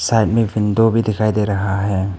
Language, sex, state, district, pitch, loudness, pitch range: Hindi, male, Arunachal Pradesh, Papum Pare, 105 Hz, -17 LUFS, 100-115 Hz